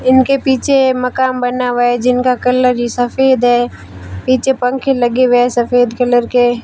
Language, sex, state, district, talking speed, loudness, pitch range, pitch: Hindi, female, Rajasthan, Barmer, 170 wpm, -13 LUFS, 245-255 Hz, 250 Hz